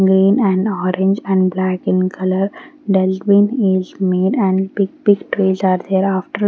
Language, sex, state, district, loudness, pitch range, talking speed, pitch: English, female, Haryana, Rohtak, -16 LUFS, 185-200 Hz, 150 wpm, 190 Hz